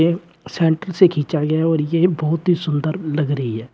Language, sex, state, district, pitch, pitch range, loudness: Hindi, male, Uttar Pradesh, Shamli, 160 Hz, 150-170 Hz, -19 LUFS